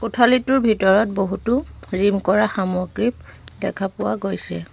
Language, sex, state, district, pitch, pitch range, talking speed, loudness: Assamese, female, Assam, Sonitpur, 200 Hz, 190-230 Hz, 115 wpm, -20 LUFS